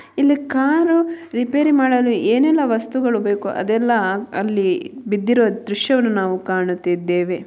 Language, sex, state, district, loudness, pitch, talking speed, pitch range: Kannada, female, Karnataka, Mysore, -18 LUFS, 230 Hz, 105 wpm, 200-275 Hz